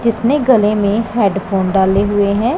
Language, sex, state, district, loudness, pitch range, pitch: Hindi, female, Punjab, Pathankot, -14 LUFS, 200-230 Hz, 205 Hz